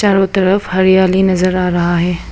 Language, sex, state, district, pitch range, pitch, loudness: Hindi, female, Arunachal Pradesh, Papum Pare, 180-190 Hz, 185 Hz, -13 LUFS